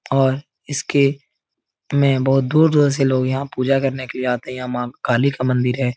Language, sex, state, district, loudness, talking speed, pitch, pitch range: Hindi, male, Uttar Pradesh, Etah, -19 LUFS, 210 wpm, 135 Hz, 130-140 Hz